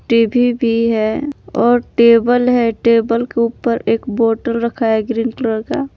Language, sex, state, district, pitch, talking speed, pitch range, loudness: Hindi, male, Jharkhand, Palamu, 235 Hz, 160 wpm, 230-245 Hz, -15 LUFS